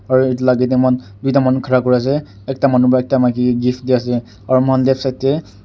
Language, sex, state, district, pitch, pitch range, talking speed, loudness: Nagamese, male, Nagaland, Kohima, 130 Hz, 125-130 Hz, 255 wpm, -15 LUFS